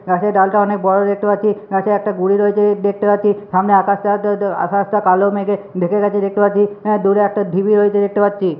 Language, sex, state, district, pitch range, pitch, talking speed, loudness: Bengali, male, West Bengal, Purulia, 195-205 Hz, 205 Hz, 210 wpm, -15 LUFS